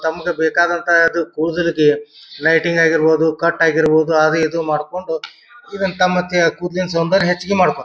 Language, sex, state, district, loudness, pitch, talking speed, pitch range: Kannada, male, Karnataka, Bijapur, -16 LUFS, 165 Hz, 145 wpm, 160-175 Hz